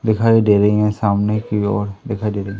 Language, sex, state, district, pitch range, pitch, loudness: Hindi, male, Madhya Pradesh, Umaria, 100-105 Hz, 105 Hz, -17 LUFS